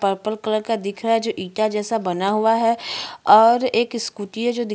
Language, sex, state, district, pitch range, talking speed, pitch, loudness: Hindi, female, Chhattisgarh, Bastar, 210-230 Hz, 225 wpm, 220 Hz, -20 LUFS